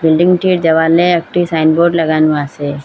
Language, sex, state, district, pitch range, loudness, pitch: Bengali, female, Assam, Hailakandi, 155-175 Hz, -12 LUFS, 160 Hz